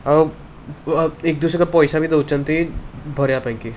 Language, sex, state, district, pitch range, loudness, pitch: Odia, male, Odisha, Khordha, 140-160 Hz, -18 LUFS, 155 Hz